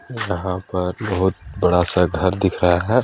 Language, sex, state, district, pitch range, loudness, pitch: Hindi, male, Chhattisgarh, Balrampur, 90-95 Hz, -20 LUFS, 90 Hz